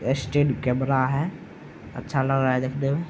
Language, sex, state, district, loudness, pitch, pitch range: Hindi, male, Bihar, Araria, -24 LUFS, 135 Hz, 130-145 Hz